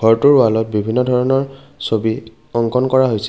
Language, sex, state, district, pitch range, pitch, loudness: Assamese, male, Assam, Kamrup Metropolitan, 110-130 Hz, 115 Hz, -16 LUFS